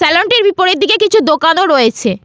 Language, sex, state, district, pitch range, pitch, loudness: Bengali, female, West Bengal, Paschim Medinipur, 305-405 Hz, 360 Hz, -10 LUFS